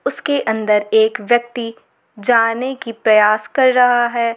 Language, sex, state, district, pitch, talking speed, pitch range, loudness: Hindi, female, Jharkhand, Garhwa, 230 Hz, 135 wpm, 220-245 Hz, -15 LUFS